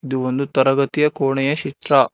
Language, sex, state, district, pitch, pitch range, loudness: Kannada, male, Karnataka, Bangalore, 135 Hz, 135-140 Hz, -19 LUFS